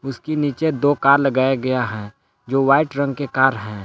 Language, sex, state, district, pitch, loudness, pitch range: Hindi, male, Jharkhand, Palamu, 135 Hz, -18 LUFS, 130-140 Hz